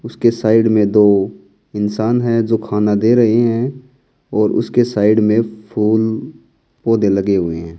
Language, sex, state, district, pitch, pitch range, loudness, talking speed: Hindi, male, Haryana, Jhajjar, 110 Hz, 105-115 Hz, -15 LUFS, 155 wpm